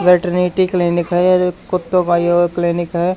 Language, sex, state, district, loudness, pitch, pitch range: Hindi, male, Haryana, Charkhi Dadri, -15 LUFS, 175 Hz, 175-180 Hz